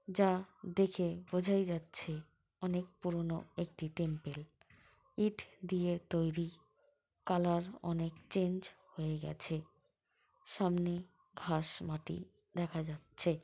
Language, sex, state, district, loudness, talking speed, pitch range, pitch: Bengali, female, West Bengal, Paschim Medinipur, -38 LUFS, 95 wpm, 160-185 Hz, 175 Hz